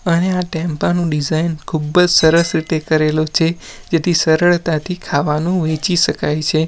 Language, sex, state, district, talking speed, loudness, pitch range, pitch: Gujarati, male, Gujarat, Valsad, 145 wpm, -16 LUFS, 155-175 Hz, 165 Hz